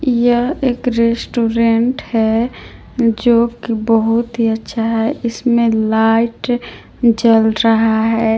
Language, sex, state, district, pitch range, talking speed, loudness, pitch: Hindi, female, Jharkhand, Palamu, 225-240 Hz, 105 wpm, -15 LUFS, 230 Hz